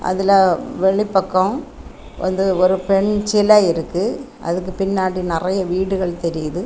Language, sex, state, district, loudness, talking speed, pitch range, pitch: Tamil, female, Tamil Nadu, Kanyakumari, -18 LUFS, 115 wpm, 185-195 Hz, 190 Hz